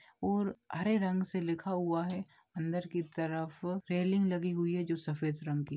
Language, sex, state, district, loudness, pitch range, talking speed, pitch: Hindi, female, Bihar, Jahanabad, -35 LUFS, 165-185 Hz, 185 wpm, 175 Hz